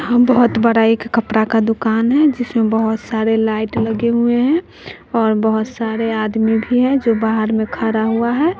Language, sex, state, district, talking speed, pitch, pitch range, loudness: Hindi, female, Bihar, West Champaran, 190 wpm, 225 Hz, 220-240 Hz, -16 LUFS